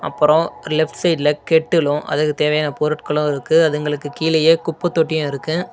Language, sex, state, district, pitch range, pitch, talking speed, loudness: Tamil, male, Tamil Nadu, Namakkal, 150-160 Hz, 155 Hz, 125 wpm, -18 LUFS